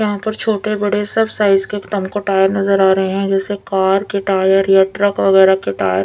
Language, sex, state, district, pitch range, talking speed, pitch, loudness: Hindi, female, Punjab, Fazilka, 190-205 Hz, 230 wpm, 195 Hz, -15 LUFS